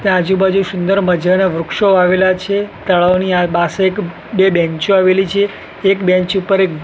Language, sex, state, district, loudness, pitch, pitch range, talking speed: Gujarati, male, Gujarat, Gandhinagar, -14 LUFS, 190 Hz, 180-195 Hz, 175 wpm